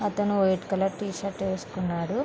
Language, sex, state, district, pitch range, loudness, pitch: Telugu, female, Andhra Pradesh, Visakhapatnam, 190-205 Hz, -27 LUFS, 195 Hz